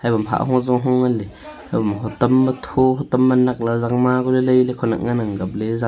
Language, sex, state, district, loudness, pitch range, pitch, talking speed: Wancho, male, Arunachal Pradesh, Longding, -18 LUFS, 115-125 Hz, 125 Hz, 255 wpm